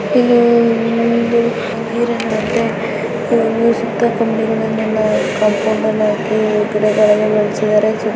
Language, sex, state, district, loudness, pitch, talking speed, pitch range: Kannada, female, Karnataka, Dakshina Kannada, -15 LUFS, 220 Hz, 95 wpm, 215-230 Hz